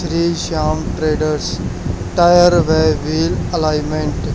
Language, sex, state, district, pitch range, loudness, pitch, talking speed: Hindi, male, Haryana, Charkhi Dadri, 150-170 Hz, -16 LUFS, 155 Hz, 95 wpm